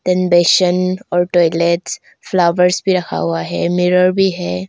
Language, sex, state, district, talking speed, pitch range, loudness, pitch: Hindi, female, Arunachal Pradesh, Longding, 130 wpm, 170-180 Hz, -15 LUFS, 180 Hz